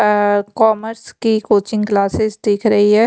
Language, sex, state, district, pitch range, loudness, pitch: Hindi, female, Chhattisgarh, Raipur, 205-220 Hz, -16 LUFS, 210 Hz